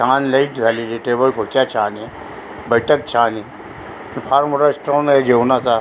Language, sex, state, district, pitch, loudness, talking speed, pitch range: Marathi, female, Maharashtra, Aurangabad, 130 Hz, -16 LUFS, 155 wpm, 120-140 Hz